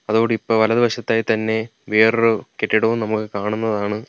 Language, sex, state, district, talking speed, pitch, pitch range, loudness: Malayalam, male, Kerala, Kollam, 115 wpm, 110 Hz, 110-115 Hz, -19 LUFS